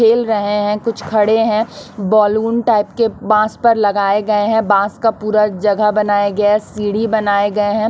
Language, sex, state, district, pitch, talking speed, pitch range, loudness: Hindi, female, Chhattisgarh, Raipur, 210 Hz, 190 wpm, 205-220 Hz, -15 LUFS